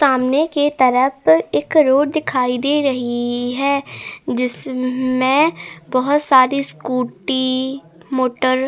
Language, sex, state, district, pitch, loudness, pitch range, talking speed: Hindi, female, Goa, North and South Goa, 260 Hz, -17 LUFS, 250-280 Hz, 105 wpm